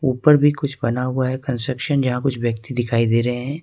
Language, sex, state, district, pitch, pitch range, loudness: Hindi, male, Jharkhand, Ranchi, 130 Hz, 120-140 Hz, -20 LUFS